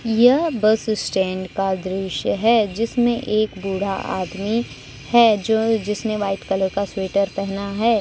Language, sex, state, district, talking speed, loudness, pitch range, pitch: Hindi, female, Jharkhand, Deoghar, 140 wpm, -20 LUFS, 195-225 Hz, 210 Hz